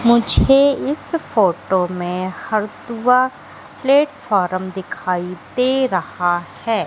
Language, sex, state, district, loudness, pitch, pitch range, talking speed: Hindi, female, Madhya Pradesh, Katni, -18 LUFS, 215 Hz, 185-260 Hz, 85 wpm